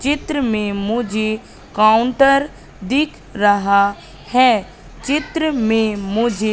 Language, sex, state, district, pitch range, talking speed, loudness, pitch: Hindi, female, Madhya Pradesh, Katni, 210-275 Hz, 100 wpm, -17 LUFS, 225 Hz